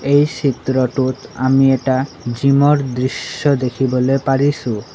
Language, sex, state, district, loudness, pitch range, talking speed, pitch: Assamese, male, Assam, Sonitpur, -16 LUFS, 130-140 Hz, 110 wpm, 135 Hz